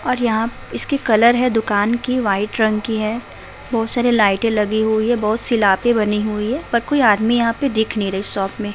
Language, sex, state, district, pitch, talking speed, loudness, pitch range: Hindi, female, Uttar Pradesh, Budaun, 225 Hz, 225 wpm, -17 LUFS, 210-240 Hz